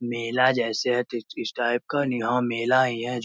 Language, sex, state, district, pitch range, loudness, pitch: Hindi, male, Bihar, Muzaffarpur, 120-125 Hz, -24 LUFS, 120 Hz